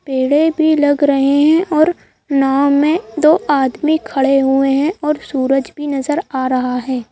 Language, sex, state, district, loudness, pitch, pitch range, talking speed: Hindi, female, Madhya Pradesh, Bhopal, -15 LUFS, 285 Hz, 270-305 Hz, 175 wpm